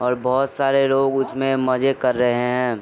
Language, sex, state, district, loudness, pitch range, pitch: Hindi, male, Bihar, Vaishali, -19 LUFS, 125-135 Hz, 130 Hz